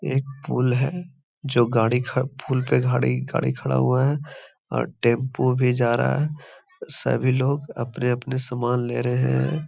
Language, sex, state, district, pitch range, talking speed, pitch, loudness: Hindi, male, Bihar, Gaya, 120-135 Hz, 155 wpm, 130 Hz, -23 LUFS